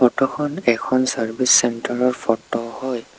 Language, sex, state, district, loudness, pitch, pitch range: Assamese, male, Assam, Sonitpur, -19 LUFS, 125 Hz, 115-130 Hz